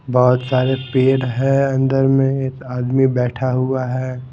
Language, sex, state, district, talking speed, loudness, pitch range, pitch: Hindi, male, Haryana, Jhajjar, 150 wpm, -17 LUFS, 125-135 Hz, 130 Hz